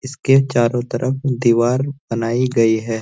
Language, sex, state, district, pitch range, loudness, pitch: Hindi, male, Uttarakhand, Uttarkashi, 115-130 Hz, -17 LUFS, 120 Hz